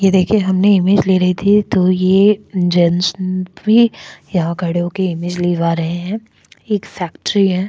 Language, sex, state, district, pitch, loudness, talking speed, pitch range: Hindi, female, Goa, North and South Goa, 185 Hz, -15 LUFS, 170 wpm, 175-200 Hz